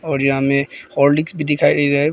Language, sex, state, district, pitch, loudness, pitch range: Hindi, male, Arunachal Pradesh, Papum Pare, 145 Hz, -17 LUFS, 140-150 Hz